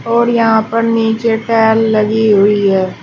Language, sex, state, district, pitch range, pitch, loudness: Hindi, female, Uttar Pradesh, Shamli, 215-230 Hz, 220 Hz, -12 LUFS